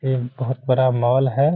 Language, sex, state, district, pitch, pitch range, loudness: Hindi, male, Bihar, Gaya, 130 Hz, 125-135 Hz, -20 LUFS